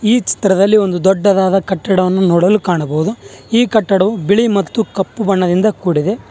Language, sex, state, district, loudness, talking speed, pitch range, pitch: Kannada, male, Karnataka, Bangalore, -13 LUFS, 135 wpm, 185-215 Hz, 195 Hz